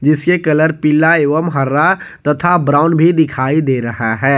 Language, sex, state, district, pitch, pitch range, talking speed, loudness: Hindi, male, Jharkhand, Garhwa, 150 Hz, 140-160 Hz, 150 wpm, -13 LUFS